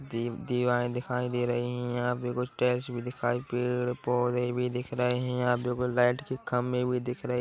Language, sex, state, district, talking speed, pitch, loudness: Hindi, male, Chhattisgarh, Korba, 200 wpm, 125 Hz, -30 LUFS